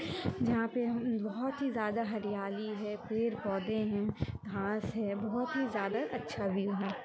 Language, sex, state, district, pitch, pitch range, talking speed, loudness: Hindi, female, Andhra Pradesh, Chittoor, 215 Hz, 200-230 Hz, 145 wpm, -35 LUFS